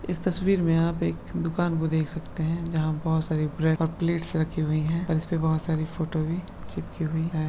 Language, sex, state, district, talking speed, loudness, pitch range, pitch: Hindi, male, West Bengal, Kolkata, 230 wpm, -27 LUFS, 155-170 Hz, 160 Hz